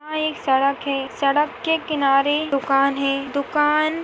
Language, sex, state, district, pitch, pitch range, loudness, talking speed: Hindi, female, Chhattisgarh, Sarguja, 280 Hz, 275-305 Hz, -20 LUFS, 150 wpm